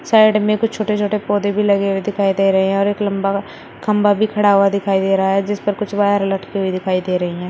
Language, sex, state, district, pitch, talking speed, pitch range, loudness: Hindi, female, Uttar Pradesh, Shamli, 200 Hz, 270 wpm, 195-205 Hz, -17 LUFS